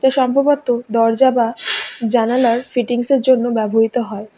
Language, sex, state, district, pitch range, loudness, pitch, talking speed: Bengali, female, West Bengal, Alipurduar, 230-255 Hz, -16 LUFS, 240 Hz, 110 wpm